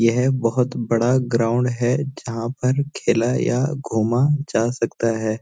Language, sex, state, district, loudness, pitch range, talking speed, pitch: Hindi, male, Uttarakhand, Uttarkashi, -21 LUFS, 115-130 Hz, 145 wpm, 120 Hz